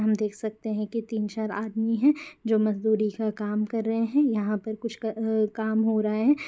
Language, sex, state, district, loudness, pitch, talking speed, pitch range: Hindi, female, Uttar Pradesh, Gorakhpur, -27 LUFS, 220 Hz, 220 wpm, 215-225 Hz